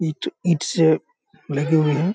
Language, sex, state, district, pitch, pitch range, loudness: Hindi, male, Bihar, Sitamarhi, 165 Hz, 155-200 Hz, -21 LUFS